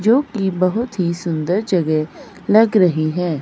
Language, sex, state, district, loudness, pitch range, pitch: Hindi, female, Himachal Pradesh, Shimla, -17 LUFS, 170-215 Hz, 180 Hz